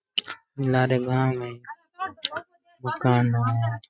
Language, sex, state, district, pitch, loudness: Rajasthani, male, Rajasthan, Nagaur, 130 Hz, -25 LUFS